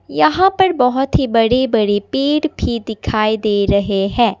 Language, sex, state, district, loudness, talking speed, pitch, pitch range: Hindi, female, Assam, Kamrup Metropolitan, -15 LUFS, 165 wpm, 230 Hz, 210-270 Hz